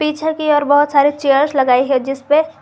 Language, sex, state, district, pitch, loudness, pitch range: Hindi, female, Jharkhand, Garhwa, 290 Hz, -14 LUFS, 275-300 Hz